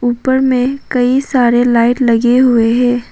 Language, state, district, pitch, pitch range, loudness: Hindi, Arunachal Pradesh, Papum Pare, 245 Hz, 240-255 Hz, -12 LUFS